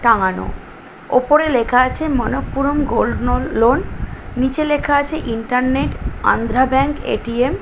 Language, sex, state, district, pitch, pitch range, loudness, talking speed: Bengali, female, West Bengal, Jhargram, 260 Hz, 245-285 Hz, -17 LUFS, 125 wpm